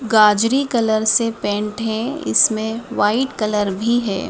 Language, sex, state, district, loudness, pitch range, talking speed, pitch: Hindi, female, Madhya Pradesh, Dhar, -18 LUFS, 210-235 Hz, 140 wpm, 220 Hz